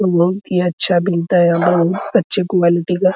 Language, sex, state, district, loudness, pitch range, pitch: Hindi, male, Bihar, Araria, -15 LUFS, 175-190 Hz, 180 Hz